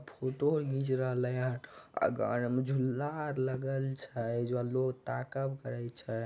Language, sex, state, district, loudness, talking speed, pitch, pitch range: Maithili, male, Bihar, Begusarai, -34 LUFS, 165 wpm, 130 Hz, 125-135 Hz